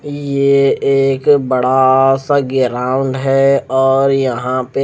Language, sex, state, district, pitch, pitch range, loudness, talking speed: Hindi, male, Odisha, Khordha, 135 Hz, 130-140 Hz, -13 LUFS, 110 wpm